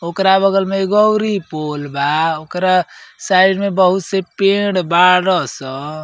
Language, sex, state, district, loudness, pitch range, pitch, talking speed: Bhojpuri, male, Uttar Pradesh, Ghazipur, -15 LUFS, 160-195 Hz, 185 Hz, 150 wpm